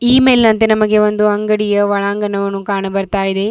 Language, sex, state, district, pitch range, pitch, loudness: Kannada, female, Karnataka, Bidar, 200-215 Hz, 210 Hz, -14 LUFS